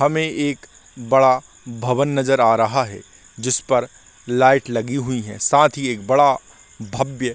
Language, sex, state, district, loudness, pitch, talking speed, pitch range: Hindi, male, Chhattisgarh, Korba, -18 LUFS, 130 Hz, 155 wpm, 115-135 Hz